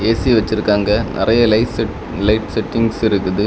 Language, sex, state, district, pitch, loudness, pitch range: Tamil, male, Tamil Nadu, Kanyakumari, 110 Hz, -16 LUFS, 105-115 Hz